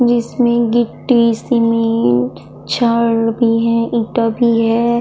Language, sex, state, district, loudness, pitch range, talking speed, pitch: Hindi, female, Chhattisgarh, Kabirdham, -15 LUFS, 230-235 Hz, 105 wpm, 230 Hz